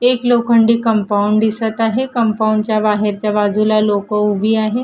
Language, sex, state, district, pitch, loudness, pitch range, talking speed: Marathi, female, Maharashtra, Gondia, 215 Hz, -15 LUFS, 210-230 Hz, 150 wpm